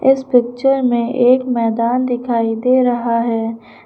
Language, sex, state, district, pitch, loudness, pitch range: Hindi, female, Uttar Pradesh, Lucknow, 245 Hz, -16 LUFS, 230-255 Hz